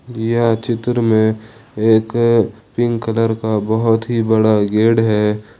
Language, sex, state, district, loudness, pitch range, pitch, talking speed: Hindi, male, Jharkhand, Ranchi, -16 LUFS, 110-115 Hz, 110 Hz, 130 wpm